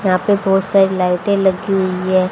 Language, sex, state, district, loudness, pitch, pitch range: Hindi, female, Haryana, Rohtak, -15 LUFS, 190 Hz, 185-195 Hz